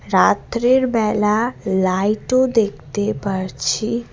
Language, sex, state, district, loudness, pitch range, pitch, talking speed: Bengali, female, West Bengal, Alipurduar, -18 LUFS, 190-235 Hz, 215 Hz, 75 wpm